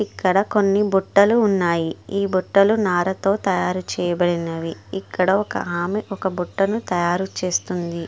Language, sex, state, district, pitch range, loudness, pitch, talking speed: Telugu, female, Andhra Pradesh, Guntur, 175-200 Hz, -20 LUFS, 190 Hz, 90 wpm